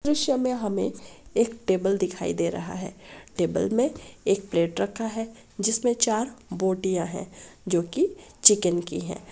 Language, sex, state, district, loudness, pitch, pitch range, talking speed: Hindi, female, Bihar, Kishanganj, -25 LUFS, 205 Hz, 185-235 Hz, 155 wpm